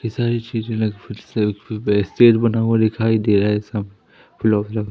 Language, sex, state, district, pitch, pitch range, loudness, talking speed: Hindi, male, Madhya Pradesh, Umaria, 110 Hz, 105-115 Hz, -19 LUFS, 185 wpm